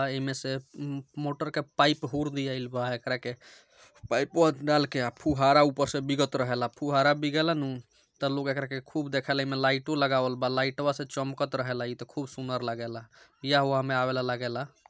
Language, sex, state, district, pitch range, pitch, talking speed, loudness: Bhojpuri, male, Bihar, Gopalganj, 130-145 Hz, 135 Hz, 205 wpm, -28 LUFS